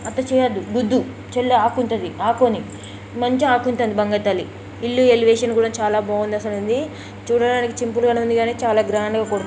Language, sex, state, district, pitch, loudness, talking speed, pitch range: Telugu, female, Telangana, Karimnagar, 235 Hz, -19 LUFS, 165 wpm, 215-245 Hz